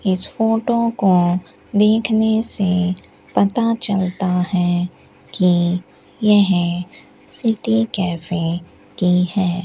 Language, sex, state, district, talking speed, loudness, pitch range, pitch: Hindi, female, Rajasthan, Bikaner, 85 wpm, -18 LUFS, 180-220 Hz, 185 Hz